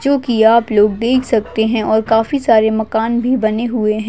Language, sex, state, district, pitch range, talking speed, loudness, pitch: Hindi, female, Maharashtra, Chandrapur, 220-235 Hz, 205 wpm, -14 LUFS, 225 Hz